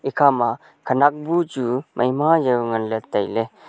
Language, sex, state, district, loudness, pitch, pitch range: Wancho, male, Arunachal Pradesh, Longding, -20 LUFS, 130 Hz, 120-145 Hz